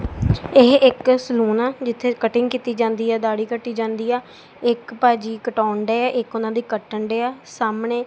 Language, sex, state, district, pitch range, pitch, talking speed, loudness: Punjabi, female, Punjab, Kapurthala, 225-245 Hz, 235 Hz, 195 wpm, -20 LUFS